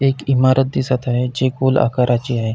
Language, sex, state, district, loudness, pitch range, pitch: Marathi, male, Maharashtra, Pune, -17 LUFS, 125-130 Hz, 130 Hz